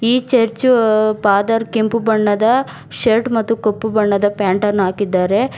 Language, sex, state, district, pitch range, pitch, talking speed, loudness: Kannada, female, Karnataka, Bangalore, 205-230 Hz, 220 Hz, 130 wpm, -15 LUFS